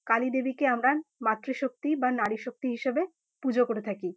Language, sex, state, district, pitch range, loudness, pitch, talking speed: Bengali, female, West Bengal, North 24 Parganas, 230-270 Hz, -29 LUFS, 255 Hz, 130 wpm